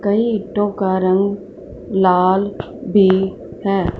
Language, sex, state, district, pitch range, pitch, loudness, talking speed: Hindi, female, Punjab, Fazilka, 190-200 Hz, 195 Hz, -17 LUFS, 105 wpm